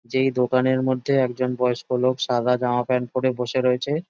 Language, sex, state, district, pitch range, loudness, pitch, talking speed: Bengali, male, West Bengal, Jalpaiguri, 125-130 Hz, -22 LUFS, 125 Hz, 190 wpm